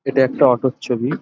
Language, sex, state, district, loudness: Bengali, male, West Bengal, North 24 Parganas, -17 LUFS